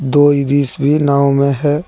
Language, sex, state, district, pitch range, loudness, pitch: Hindi, male, Jharkhand, Deoghar, 140-145 Hz, -13 LUFS, 140 Hz